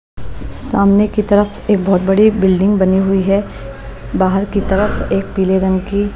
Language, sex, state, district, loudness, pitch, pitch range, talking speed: Hindi, female, Chhattisgarh, Raipur, -14 LUFS, 195 Hz, 190-205 Hz, 165 wpm